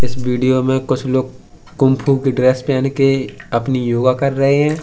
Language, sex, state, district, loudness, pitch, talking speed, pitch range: Hindi, male, Uttar Pradesh, Hamirpur, -16 LUFS, 130 Hz, 185 wpm, 130-135 Hz